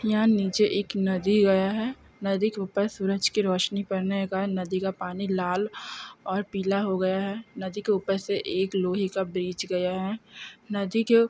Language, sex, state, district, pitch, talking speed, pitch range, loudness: Hindi, female, Andhra Pradesh, Guntur, 195 Hz, 180 wpm, 190-205 Hz, -27 LUFS